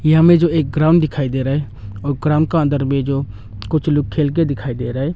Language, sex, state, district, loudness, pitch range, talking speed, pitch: Hindi, male, Arunachal Pradesh, Longding, -17 LUFS, 130-155 Hz, 255 wpm, 145 Hz